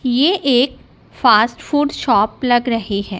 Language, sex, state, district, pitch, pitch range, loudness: Hindi, female, Punjab, Kapurthala, 250 Hz, 230-285 Hz, -16 LUFS